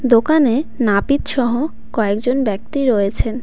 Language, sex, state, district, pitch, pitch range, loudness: Bengali, female, West Bengal, Cooch Behar, 245 Hz, 220-280 Hz, -17 LUFS